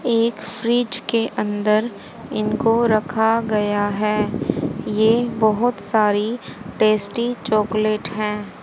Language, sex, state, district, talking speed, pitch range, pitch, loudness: Hindi, female, Haryana, Charkhi Dadri, 95 wpm, 210-230 Hz, 215 Hz, -19 LUFS